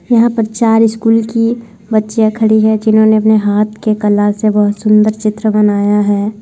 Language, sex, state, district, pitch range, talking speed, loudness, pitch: Hindi, female, Bihar, Saharsa, 210-225 Hz, 180 wpm, -11 LUFS, 215 Hz